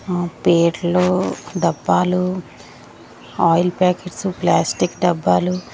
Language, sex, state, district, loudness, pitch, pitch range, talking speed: Telugu, female, Andhra Pradesh, Sri Satya Sai, -18 LUFS, 175 Hz, 165-180 Hz, 85 wpm